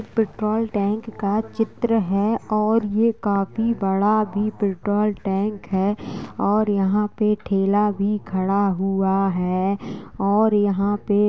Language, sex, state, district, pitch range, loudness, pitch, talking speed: Hindi, female, Uttar Pradesh, Jalaun, 195-215 Hz, -21 LUFS, 205 Hz, 135 wpm